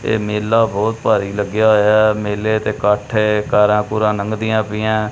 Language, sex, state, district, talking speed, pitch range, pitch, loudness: Punjabi, male, Punjab, Kapurthala, 175 wpm, 105-110 Hz, 105 Hz, -16 LUFS